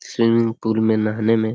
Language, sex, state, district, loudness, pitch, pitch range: Hindi, male, Jharkhand, Sahebganj, -19 LUFS, 110 Hz, 110-115 Hz